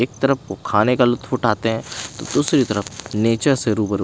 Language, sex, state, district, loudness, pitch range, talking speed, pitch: Hindi, male, Himachal Pradesh, Shimla, -19 LUFS, 105-125 Hz, 195 wpm, 115 Hz